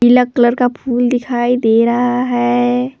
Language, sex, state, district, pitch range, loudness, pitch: Hindi, female, Jharkhand, Palamu, 240-250 Hz, -14 LUFS, 245 Hz